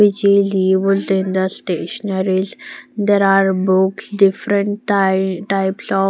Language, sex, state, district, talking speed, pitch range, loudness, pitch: English, female, Punjab, Pathankot, 120 wpm, 190-200 Hz, -16 LUFS, 195 Hz